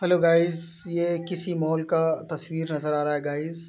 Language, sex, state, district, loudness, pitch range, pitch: Hindi, male, Bihar, Araria, -25 LUFS, 160-170 Hz, 165 Hz